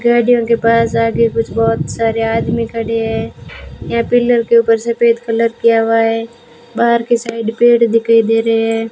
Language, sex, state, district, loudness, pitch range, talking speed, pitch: Hindi, female, Rajasthan, Bikaner, -14 LUFS, 225-235 Hz, 180 wpm, 230 Hz